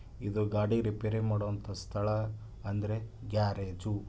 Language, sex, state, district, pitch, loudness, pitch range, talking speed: Kannada, male, Karnataka, Dharwad, 105 Hz, -34 LUFS, 100-110 Hz, 115 wpm